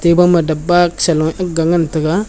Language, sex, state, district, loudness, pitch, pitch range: Wancho, male, Arunachal Pradesh, Longding, -14 LUFS, 170 Hz, 160-175 Hz